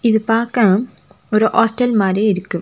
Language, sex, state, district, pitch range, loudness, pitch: Tamil, female, Tamil Nadu, Nilgiris, 200-230 Hz, -16 LUFS, 220 Hz